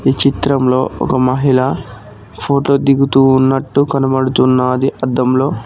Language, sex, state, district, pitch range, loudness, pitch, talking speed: Telugu, male, Telangana, Mahabubabad, 125-135 Hz, -13 LUFS, 130 Hz, 85 wpm